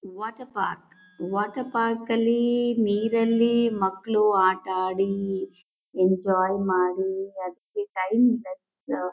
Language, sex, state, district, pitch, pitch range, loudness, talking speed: Kannada, female, Karnataka, Mysore, 195 Hz, 185-230 Hz, -25 LUFS, 90 wpm